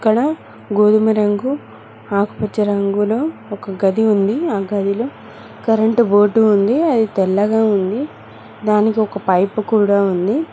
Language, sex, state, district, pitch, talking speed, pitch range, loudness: Telugu, female, Telangana, Mahabubabad, 210 Hz, 120 wpm, 200-225 Hz, -16 LUFS